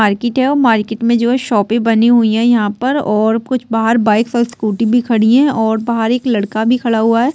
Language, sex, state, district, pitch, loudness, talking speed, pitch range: Hindi, female, Bihar, Sitamarhi, 230 Hz, -13 LUFS, 245 wpm, 220-240 Hz